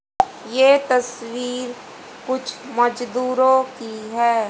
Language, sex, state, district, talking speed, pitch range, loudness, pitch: Hindi, female, Haryana, Charkhi Dadri, 80 wpm, 235-260 Hz, -20 LUFS, 250 Hz